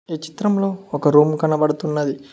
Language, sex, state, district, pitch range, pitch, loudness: Telugu, male, Telangana, Mahabubabad, 150-170 Hz, 155 Hz, -19 LUFS